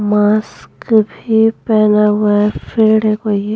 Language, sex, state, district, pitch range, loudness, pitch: Hindi, female, Uttar Pradesh, Muzaffarnagar, 210-220 Hz, -13 LUFS, 215 Hz